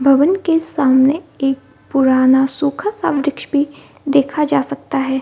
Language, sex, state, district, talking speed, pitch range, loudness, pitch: Hindi, female, Bihar, Gaya, 160 wpm, 270-305 Hz, -16 LUFS, 280 Hz